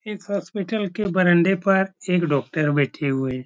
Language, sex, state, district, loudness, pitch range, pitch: Hindi, male, Uttar Pradesh, Etah, -22 LUFS, 145-200 Hz, 180 Hz